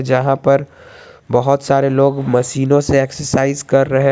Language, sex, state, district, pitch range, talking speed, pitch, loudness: Hindi, male, Jharkhand, Garhwa, 135-140 Hz, 145 wpm, 135 Hz, -15 LUFS